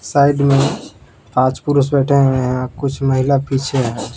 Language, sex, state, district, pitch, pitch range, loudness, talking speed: Hindi, male, Jharkhand, Palamu, 135 Hz, 130-140 Hz, -16 LUFS, 160 wpm